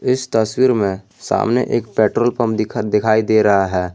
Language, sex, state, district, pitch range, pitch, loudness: Hindi, male, Jharkhand, Garhwa, 100-120 Hz, 110 Hz, -17 LUFS